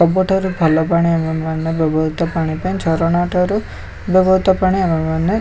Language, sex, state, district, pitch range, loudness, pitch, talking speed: Odia, male, Odisha, Khordha, 160-185 Hz, -16 LUFS, 170 Hz, 175 wpm